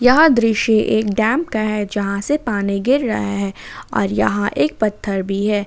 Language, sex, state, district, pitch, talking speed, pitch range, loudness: Hindi, female, Jharkhand, Ranchi, 215 Hz, 190 wpm, 200-235 Hz, -18 LUFS